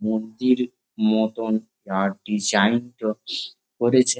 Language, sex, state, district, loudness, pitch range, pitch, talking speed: Bengali, male, West Bengal, Jalpaiguri, -23 LUFS, 110-125 Hz, 110 Hz, 100 wpm